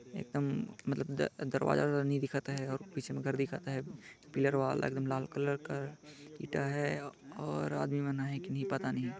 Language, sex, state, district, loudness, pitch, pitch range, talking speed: Chhattisgarhi, male, Chhattisgarh, Jashpur, -36 LUFS, 140 Hz, 135-140 Hz, 190 wpm